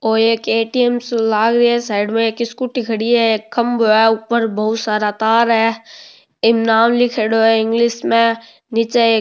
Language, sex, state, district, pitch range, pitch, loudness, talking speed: Rajasthani, male, Rajasthan, Nagaur, 225-235 Hz, 230 Hz, -15 LUFS, 195 wpm